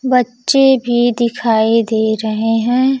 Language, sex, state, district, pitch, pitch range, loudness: Hindi, female, Bihar, Kaimur, 240 Hz, 225-255 Hz, -14 LUFS